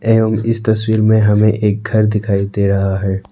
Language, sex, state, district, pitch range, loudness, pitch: Hindi, male, Jharkhand, Deoghar, 100-110 Hz, -14 LUFS, 105 Hz